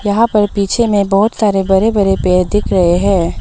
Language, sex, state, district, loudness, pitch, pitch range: Hindi, female, Arunachal Pradesh, Lower Dibang Valley, -13 LUFS, 200 Hz, 195-210 Hz